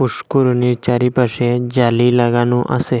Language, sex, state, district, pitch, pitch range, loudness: Bengali, male, Assam, Hailakandi, 125 Hz, 120-125 Hz, -15 LUFS